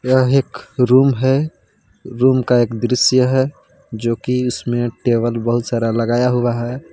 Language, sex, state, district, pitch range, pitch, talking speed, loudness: Hindi, male, Jharkhand, Palamu, 120-130 Hz, 125 Hz, 155 wpm, -17 LUFS